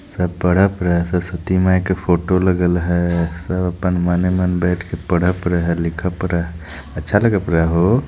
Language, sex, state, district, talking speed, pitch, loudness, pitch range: Hindi, male, Bihar, Jamui, 165 wpm, 90 Hz, -18 LUFS, 85-90 Hz